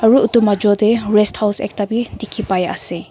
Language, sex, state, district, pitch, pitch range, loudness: Nagamese, female, Nagaland, Kohima, 210 Hz, 205-225 Hz, -15 LUFS